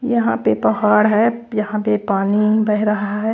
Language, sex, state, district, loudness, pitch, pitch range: Hindi, female, Bihar, West Champaran, -17 LUFS, 210 Hz, 210-220 Hz